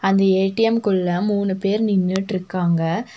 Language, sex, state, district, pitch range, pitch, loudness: Tamil, female, Tamil Nadu, Nilgiris, 185-205 Hz, 195 Hz, -20 LUFS